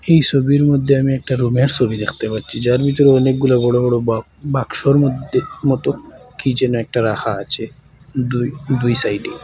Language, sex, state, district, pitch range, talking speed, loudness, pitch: Bengali, male, Assam, Hailakandi, 120-140 Hz, 165 wpm, -17 LUFS, 130 Hz